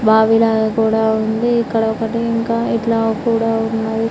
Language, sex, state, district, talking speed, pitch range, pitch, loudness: Telugu, female, Andhra Pradesh, Srikakulam, 145 wpm, 220-230 Hz, 225 Hz, -16 LUFS